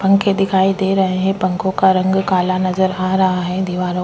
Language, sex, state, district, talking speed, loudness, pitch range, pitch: Hindi, female, Uttar Pradesh, Etah, 225 wpm, -16 LUFS, 185-190 Hz, 190 Hz